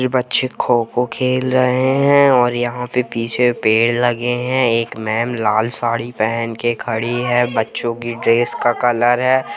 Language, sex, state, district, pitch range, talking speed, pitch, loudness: Hindi, male, Jharkhand, Jamtara, 115-125 Hz, 170 wpm, 120 Hz, -17 LUFS